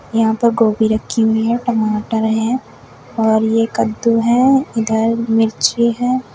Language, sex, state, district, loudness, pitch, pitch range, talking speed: Hindi, female, Uttar Pradesh, Shamli, -15 LUFS, 225 Hz, 220-235 Hz, 140 wpm